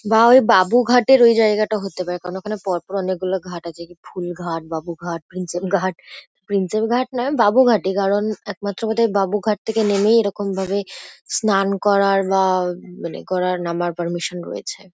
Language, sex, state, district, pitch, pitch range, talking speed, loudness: Bengali, female, West Bengal, Kolkata, 195 Hz, 180-215 Hz, 155 wpm, -19 LUFS